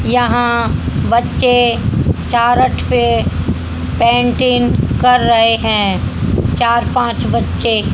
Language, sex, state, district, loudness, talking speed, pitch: Hindi, female, Haryana, Jhajjar, -14 LUFS, 85 wpm, 235 Hz